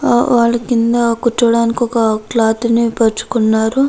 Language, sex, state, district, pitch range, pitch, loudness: Telugu, female, Andhra Pradesh, Krishna, 225-240 Hz, 235 Hz, -14 LUFS